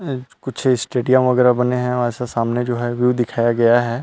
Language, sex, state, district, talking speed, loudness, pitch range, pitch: Hindi, male, Chhattisgarh, Rajnandgaon, 210 wpm, -18 LUFS, 120-125 Hz, 125 Hz